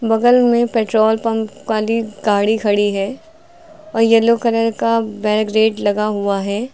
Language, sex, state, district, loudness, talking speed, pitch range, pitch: Hindi, female, Uttar Pradesh, Lucknow, -16 LUFS, 125 wpm, 210-235 Hz, 225 Hz